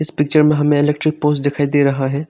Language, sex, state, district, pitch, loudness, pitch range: Hindi, male, Arunachal Pradesh, Lower Dibang Valley, 145 Hz, -15 LUFS, 145-150 Hz